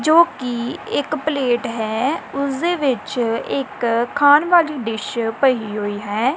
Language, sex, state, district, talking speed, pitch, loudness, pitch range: Punjabi, female, Punjab, Kapurthala, 130 wpm, 255 Hz, -19 LUFS, 230-290 Hz